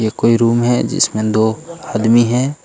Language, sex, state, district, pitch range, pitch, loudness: Hindi, male, Jharkhand, Ranchi, 110-125 Hz, 115 Hz, -14 LUFS